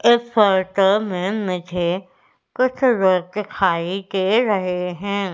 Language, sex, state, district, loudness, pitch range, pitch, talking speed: Hindi, female, Madhya Pradesh, Umaria, -19 LUFS, 180-210 Hz, 195 Hz, 110 wpm